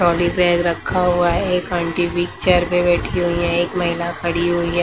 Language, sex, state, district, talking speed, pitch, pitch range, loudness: Hindi, female, Maharashtra, Mumbai Suburban, 225 wpm, 175 Hz, 170-175 Hz, -18 LUFS